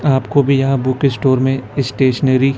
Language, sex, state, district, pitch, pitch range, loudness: Hindi, male, Chhattisgarh, Raipur, 135 Hz, 130-135 Hz, -15 LUFS